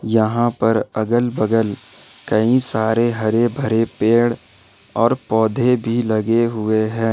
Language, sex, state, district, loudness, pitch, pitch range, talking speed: Hindi, male, Jharkhand, Ranchi, -18 LUFS, 115 Hz, 110-120 Hz, 125 wpm